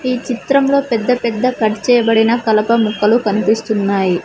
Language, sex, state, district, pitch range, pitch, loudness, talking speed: Telugu, female, Telangana, Mahabubabad, 215-250 Hz, 225 Hz, -14 LUFS, 125 wpm